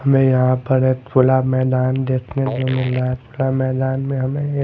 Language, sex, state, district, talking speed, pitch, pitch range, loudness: Hindi, male, Bihar, Patna, 205 wpm, 130 Hz, 130-135 Hz, -18 LUFS